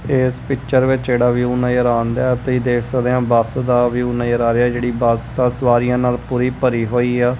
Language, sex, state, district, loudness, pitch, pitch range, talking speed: Punjabi, male, Punjab, Kapurthala, -17 LUFS, 125 Hz, 120-125 Hz, 220 wpm